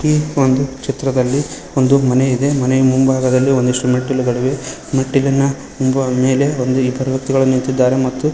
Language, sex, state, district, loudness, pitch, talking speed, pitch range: Kannada, male, Karnataka, Koppal, -15 LUFS, 130 Hz, 130 wpm, 130-135 Hz